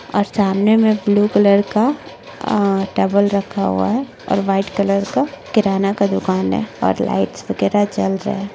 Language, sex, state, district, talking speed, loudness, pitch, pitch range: Hindi, female, Bihar, Sitamarhi, 175 wpm, -17 LUFS, 200 Hz, 195-210 Hz